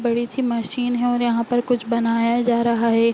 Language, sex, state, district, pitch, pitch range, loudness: Hindi, female, Uttar Pradesh, Ghazipur, 235 Hz, 230-245 Hz, -20 LUFS